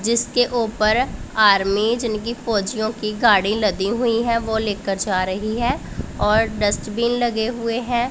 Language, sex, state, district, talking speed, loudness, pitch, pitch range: Hindi, female, Punjab, Pathankot, 150 wpm, -20 LUFS, 220 Hz, 210-235 Hz